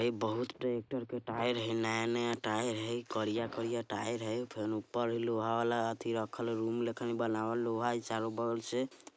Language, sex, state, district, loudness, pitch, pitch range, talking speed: Bajjika, male, Bihar, Vaishali, -35 LUFS, 115 Hz, 115-120 Hz, 190 wpm